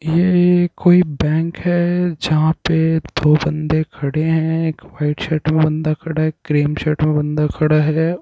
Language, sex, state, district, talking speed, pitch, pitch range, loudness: Hindi, male, Bihar, Jahanabad, 185 wpm, 155 Hz, 155-165 Hz, -17 LUFS